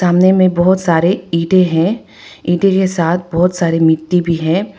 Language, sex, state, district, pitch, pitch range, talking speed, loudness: Hindi, female, Arunachal Pradesh, Papum Pare, 175 Hz, 165-185 Hz, 175 wpm, -13 LUFS